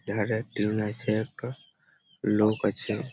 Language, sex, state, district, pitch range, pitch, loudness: Bengali, male, West Bengal, Malda, 105-115 Hz, 110 Hz, -29 LUFS